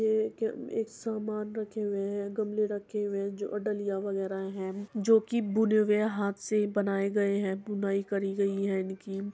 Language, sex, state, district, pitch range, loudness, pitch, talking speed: Hindi, female, Uttar Pradesh, Muzaffarnagar, 195-215 Hz, -31 LUFS, 205 Hz, 195 wpm